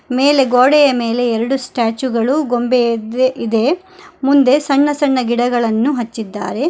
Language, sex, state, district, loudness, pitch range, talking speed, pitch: Kannada, female, Karnataka, Koppal, -15 LUFS, 235-280 Hz, 125 wpm, 255 Hz